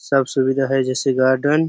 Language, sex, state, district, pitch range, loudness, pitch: Hindi, male, Chhattisgarh, Bastar, 130-140 Hz, -18 LUFS, 135 Hz